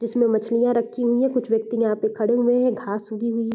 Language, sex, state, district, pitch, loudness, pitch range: Hindi, female, Bihar, East Champaran, 230 Hz, -22 LUFS, 220-240 Hz